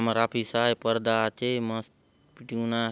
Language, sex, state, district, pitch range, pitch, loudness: Halbi, male, Chhattisgarh, Bastar, 115-120 Hz, 115 Hz, -27 LUFS